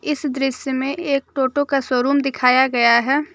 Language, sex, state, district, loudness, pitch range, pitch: Hindi, female, Jharkhand, Deoghar, -18 LUFS, 260-280 Hz, 270 Hz